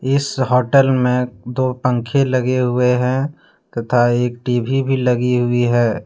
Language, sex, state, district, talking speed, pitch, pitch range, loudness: Hindi, male, Jharkhand, Deoghar, 150 wpm, 125 Hz, 120-130 Hz, -17 LUFS